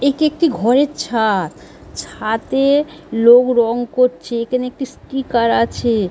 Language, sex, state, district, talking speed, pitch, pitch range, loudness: Bengali, female, West Bengal, Dakshin Dinajpur, 120 wpm, 240 Hz, 220-270 Hz, -16 LUFS